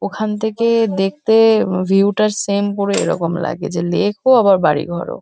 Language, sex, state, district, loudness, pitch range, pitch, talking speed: Bengali, female, West Bengal, Kolkata, -16 LUFS, 185-215 Hz, 200 Hz, 185 wpm